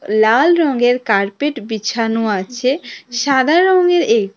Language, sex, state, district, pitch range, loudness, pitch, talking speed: Bengali, female, Tripura, West Tripura, 220-290 Hz, -15 LUFS, 245 Hz, 110 wpm